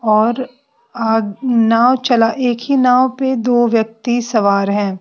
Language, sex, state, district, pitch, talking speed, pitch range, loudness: Hindi, female, Bihar, West Champaran, 235 Hz, 145 wpm, 225-250 Hz, -15 LUFS